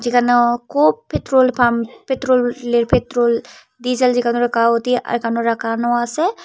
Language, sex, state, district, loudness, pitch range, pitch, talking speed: Bengali, female, Tripura, Unakoti, -17 LUFS, 235-250 Hz, 240 Hz, 95 wpm